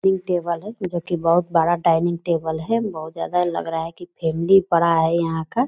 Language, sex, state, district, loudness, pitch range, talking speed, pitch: Hindi, female, Bihar, Purnia, -21 LUFS, 165-180 Hz, 220 wpm, 170 Hz